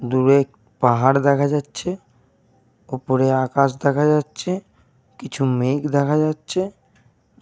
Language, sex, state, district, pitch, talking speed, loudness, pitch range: Bengali, male, Jharkhand, Jamtara, 140 Hz, 95 wpm, -19 LUFS, 130-150 Hz